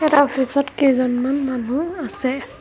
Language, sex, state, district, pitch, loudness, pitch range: Assamese, female, Assam, Hailakandi, 270 Hz, -19 LUFS, 255-285 Hz